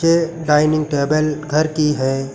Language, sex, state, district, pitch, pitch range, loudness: Hindi, male, Uttar Pradesh, Lucknow, 155 Hz, 145-155 Hz, -17 LUFS